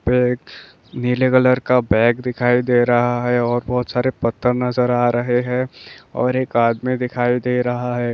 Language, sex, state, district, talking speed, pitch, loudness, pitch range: Hindi, male, Bihar, East Champaran, 185 wpm, 125 Hz, -18 LUFS, 120-125 Hz